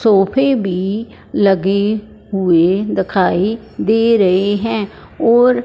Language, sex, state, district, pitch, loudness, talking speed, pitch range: Hindi, female, Punjab, Fazilka, 205 Hz, -15 LUFS, 95 wpm, 195-225 Hz